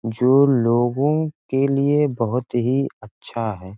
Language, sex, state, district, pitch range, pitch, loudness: Hindi, male, Bihar, Gopalganj, 115-140 Hz, 125 Hz, -20 LUFS